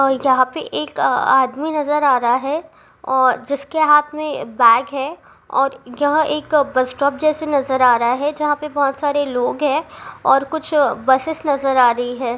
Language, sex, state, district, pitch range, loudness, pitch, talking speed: Hindi, female, Rajasthan, Churu, 260-300 Hz, -17 LUFS, 280 Hz, 180 wpm